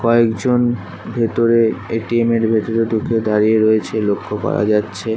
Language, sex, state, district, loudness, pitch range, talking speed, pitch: Bengali, male, West Bengal, Kolkata, -17 LUFS, 105-115 Hz, 140 wpm, 110 Hz